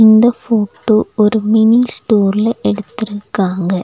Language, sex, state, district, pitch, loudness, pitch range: Tamil, female, Tamil Nadu, Nilgiris, 215 Hz, -14 LUFS, 205-225 Hz